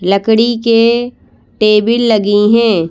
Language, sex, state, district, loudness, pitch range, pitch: Hindi, female, Madhya Pradesh, Bhopal, -11 LUFS, 210-235 Hz, 225 Hz